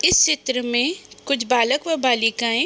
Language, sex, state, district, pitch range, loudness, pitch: Hindi, female, Uttar Pradesh, Budaun, 240-295 Hz, -19 LUFS, 255 Hz